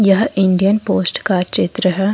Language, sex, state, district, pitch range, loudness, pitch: Hindi, female, Jharkhand, Deoghar, 185-205 Hz, -15 LUFS, 195 Hz